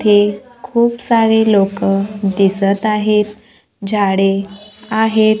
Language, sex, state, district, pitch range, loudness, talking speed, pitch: Marathi, female, Maharashtra, Gondia, 200-220 Hz, -15 LUFS, 90 wpm, 210 Hz